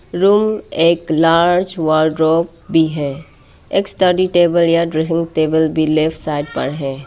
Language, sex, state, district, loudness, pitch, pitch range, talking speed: Hindi, female, Arunachal Pradesh, Lower Dibang Valley, -15 LUFS, 165 Hz, 155-175 Hz, 135 wpm